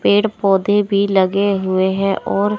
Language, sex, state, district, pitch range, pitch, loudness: Hindi, male, Chandigarh, Chandigarh, 190-205 Hz, 200 Hz, -16 LUFS